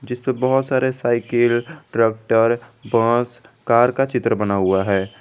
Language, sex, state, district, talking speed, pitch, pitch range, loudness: Hindi, male, Jharkhand, Garhwa, 140 wpm, 120 Hz, 115-130 Hz, -19 LUFS